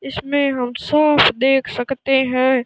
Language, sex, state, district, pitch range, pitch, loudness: Hindi, male, Rajasthan, Bikaner, 245-270 Hz, 265 Hz, -17 LUFS